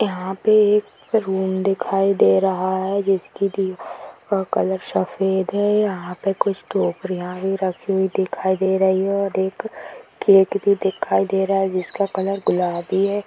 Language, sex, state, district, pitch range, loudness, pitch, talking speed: Bhojpuri, female, Bihar, Saran, 190-200 Hz, -20 LUFS, 190 Hz, 165 wpm